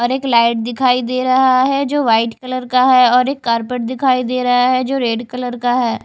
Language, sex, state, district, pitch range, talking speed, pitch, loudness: Hindi, female, Odisha, Khordha, 245-255 Hz, 240 wpm, 250 Hz, -15 LUFS